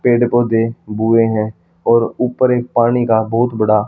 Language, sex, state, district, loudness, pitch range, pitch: Hindi, male, Haryana, Charkhi Dadri, -15 LUFS, 110-120 Hz, 115 Hz